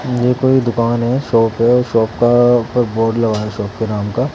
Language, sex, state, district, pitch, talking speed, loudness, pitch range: Hindi, male, Haryana, Jhajjar, 120 Hz, 205 wpm, -15 LUFS, 115-125 Hz